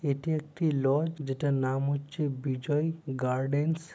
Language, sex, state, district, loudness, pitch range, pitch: Bengali, male, West Bengal, Purulia, -30 LUFS, 135-155 Hz, 145 Hz